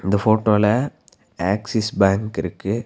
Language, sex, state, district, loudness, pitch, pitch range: Tamil, male, Tamil Nadu, Nilgiris, -20 LUFS, 105 Hz, 95-110 Hz